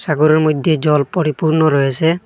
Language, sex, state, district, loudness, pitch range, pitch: Bengali, male, Assam, Hailakandi, -14 LUFS, 150-160 Hz, 155 Hz